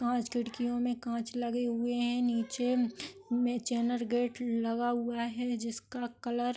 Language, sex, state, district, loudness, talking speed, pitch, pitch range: Hindi, female, Uttar Pradesh, Ghazipur, -33 LUFS, 155 wpm, 240 Hz, 235-245 Hz